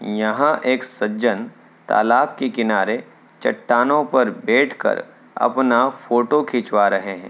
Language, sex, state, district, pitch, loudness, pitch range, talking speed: Hindi, male, Uttar Pradesh, Hamirpur, 120 Hz, -19 LUFS, 105-135 Hz, 115 wpm